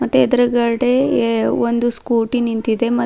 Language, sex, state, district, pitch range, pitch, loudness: Kannada, female, Karnataka, Bidar, 225-245 Hz, 235 Hz, -17 LUFS